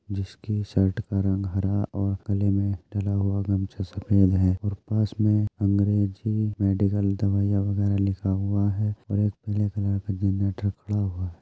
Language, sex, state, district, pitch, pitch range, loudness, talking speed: Hindi, male, Uttar Pradesh, Jyotiba Phule Nagar, 100 Hz, 100-105 Hz, -25 LUFS, 160 wpm